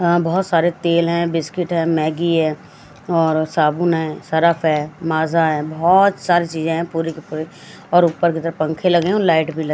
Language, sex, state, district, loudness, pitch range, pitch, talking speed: Hindi, female, Punjab, Fazilka, -18 LUFS, 160-170 Hz, 165 Hz, 210 wpm